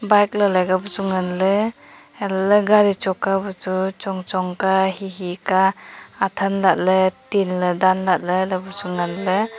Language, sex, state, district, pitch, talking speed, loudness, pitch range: Wancho, female, Arunachal Pradesh, Longding, 190 Hz, 145 wpm, -20 LUFS, 185-200 Hz